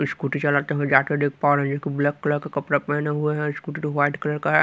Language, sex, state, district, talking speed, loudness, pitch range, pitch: Hindi, male, Haryana, Rohtak, 285 wpm, -23 LUFS, 145-150 Hz, 145 Hz